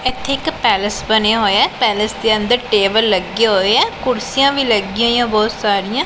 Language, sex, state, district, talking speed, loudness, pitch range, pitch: Punjabi, female, Punjab, Pathankot, 180 wpm, -15 LUFS, 205-245 Hz, 220 Hz